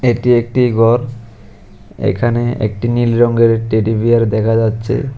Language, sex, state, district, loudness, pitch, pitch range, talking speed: Bengali, male, Tripura, West Tripura, -14 LUFS, 115 Hz, 110-120 Hz, 125 wpm